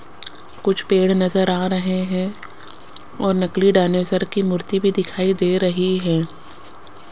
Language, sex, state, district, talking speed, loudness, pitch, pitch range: Hindi, female, Rajasthan, Jaipur, 135 wpm, -19 LUFS, 185 Hz, 185-195 Hz